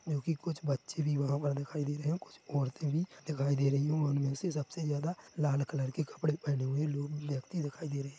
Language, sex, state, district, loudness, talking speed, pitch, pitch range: Hindi, male, Chhattisgarh, Korba, -35 LUFS, 250 wpm, 145 Hz, 140-155 Hz